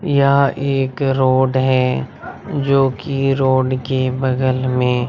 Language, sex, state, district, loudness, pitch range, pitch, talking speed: Hindi, male, Bihar, Katihar, -17 LUFS, 130-135 Hz, 130 Hz, 105 wpm